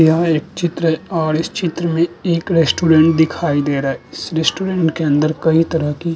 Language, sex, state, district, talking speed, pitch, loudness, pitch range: Hindi, male, Uttar Pradesh, Budaun, 215 wpm, 160 Hz, -16 LUFS, 155-170 Hz